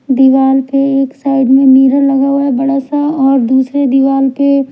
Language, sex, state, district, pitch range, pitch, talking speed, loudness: Hindi, female, Punjab, Pathankot, 265-275 Hz, 270 Hz, 190 wpm, -10 LUFS